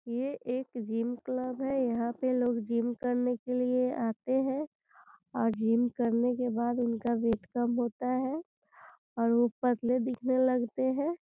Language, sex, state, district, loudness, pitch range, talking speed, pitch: Hindi, female, Bihar, Gopalganj, -31 LUFS, 235-255 Hz, 160 wpm, 245 Hz